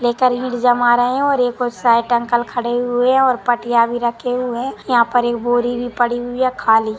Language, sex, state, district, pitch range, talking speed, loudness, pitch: Hindi, female, Chhattisgarh, Sukma, 240-245 Hz, 230 wpm, -17 LUFS, 245 Hz